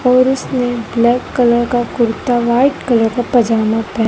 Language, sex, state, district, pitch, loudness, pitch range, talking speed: Hindi, female, Madhya Pradesh, Dhar, 240 Hz, -14 LUFS, 230-250 Hz, 145 wpm